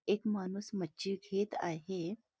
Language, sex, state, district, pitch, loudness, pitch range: Marathi, female, Maharashtra, Nagpur, 195 Hz, -38 LUFS, 175-205 Hz